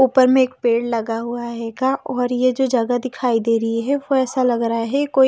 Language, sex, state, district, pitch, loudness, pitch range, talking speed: Hindi, female, Haryana, Rohtak, 245 Hz, -19 LUFS, 230-265 Hz, 240 wpm